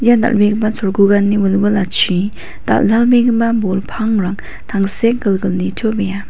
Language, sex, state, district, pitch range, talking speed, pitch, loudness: Garo, female, Meghalaya, West Garo Hills, 195-225 Hz, 85 wpm, 205 Hz, -14 LUFS